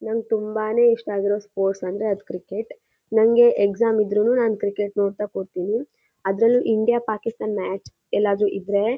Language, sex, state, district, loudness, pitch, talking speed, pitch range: Kannada, female, Karnataka, Shimoga, -22 LUFS, 210 Hz, 135 wpm, 200-225 Hz